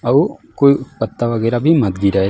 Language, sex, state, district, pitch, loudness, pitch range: Chhattisgarhi, male, Chhattisgarh, Jashpur, 130 Hz, -16 LUFS, 115-145 Hz